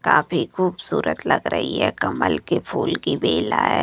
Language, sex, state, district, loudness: Hindi, female, Bihar, Katihar, -21 LUFS